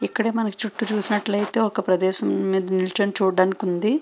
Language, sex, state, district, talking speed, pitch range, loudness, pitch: Telugu, female, Andhra Pradesh, Srikakulam, 180 wpm, 190-220 Hz, -21 LUFS, 205 Hz